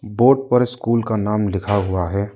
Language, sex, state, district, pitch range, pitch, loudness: Hindi, male, Arunachal Pradesh, Lower Dibang Valley, 100-120 Hz, 105 Hz, -18 LUFS